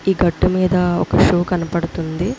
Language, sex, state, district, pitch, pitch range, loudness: Telugu, female, Andhra Pradesh, Visakhapatnam, 180 Hz, 170-185 Hz, -17 LUFS